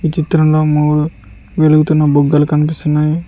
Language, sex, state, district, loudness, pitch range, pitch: Telugu, male, Telangana, Mahabubabad, -13 LUFS, 150-155 Hz, 155 Hz